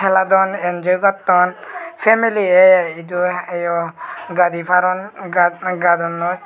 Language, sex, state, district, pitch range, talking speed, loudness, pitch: Chakma, male, Tripura, West Tripura, 175-190 Hz, 95 wpm, -16 LUFS, 180 Hz